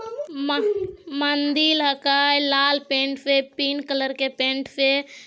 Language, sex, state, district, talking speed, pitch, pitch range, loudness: Magahi, female, Bihar, Jamui, 135 wpm, 280 Hz, 275-290 Hz, -21 LUFS